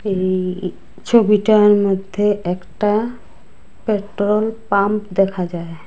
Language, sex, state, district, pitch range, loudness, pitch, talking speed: Bengali, female, Assam, Hailakandi, 185-210 Hz, -17 LUFS, 205 Hz, 80 wpm